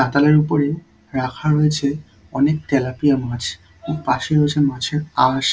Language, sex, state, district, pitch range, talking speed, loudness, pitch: Bengali, male, West Bengal, Dakshin Dinajpur, 130-150 Hz, 140 wpm, -19 LUFS, 140 Hz